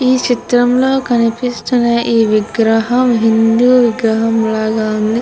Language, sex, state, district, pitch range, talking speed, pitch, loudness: Telugu, female, Andhra Pradesh, Guntur, 225-245 Hz, 115 wpm, 235 Hz, -13 LUFS